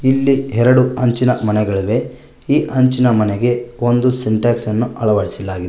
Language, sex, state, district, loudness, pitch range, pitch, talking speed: Kannada, male, Karnataka, Koppal, -15 LUFS, 110-125 Hz, 120 Hz, 115 wpm